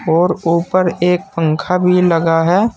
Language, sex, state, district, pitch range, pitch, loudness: Hindi, male, Uttar Pradesh, Saharanpur, 165-180 Hz, 175 Hz, -14 LUFS